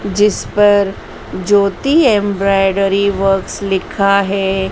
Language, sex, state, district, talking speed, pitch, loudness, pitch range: Hindi, male, Madhya Pradesh, Dhar, 90 wpm, 195 Hz, -14 LUFS, 195-200 Hz